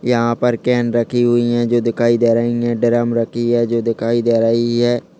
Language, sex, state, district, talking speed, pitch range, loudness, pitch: Hindi, male, Chhattisgarh, Kabirdham, 220 wpm, 115-120 Hz, -16 LUFS, 120 Hz